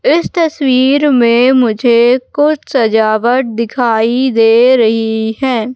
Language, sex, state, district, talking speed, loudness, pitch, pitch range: Hindi, female, Madhya Pradesh, Katni, 105 wpm, -11 LUFS, 245 Hz, 225-265 Hz